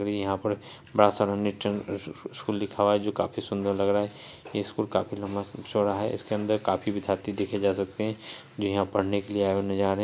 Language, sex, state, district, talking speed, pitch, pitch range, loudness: Hindi, male, Bihar, Saharsa, 250 wpm, 100 Hz, 100-105 Hz, -28 LUFS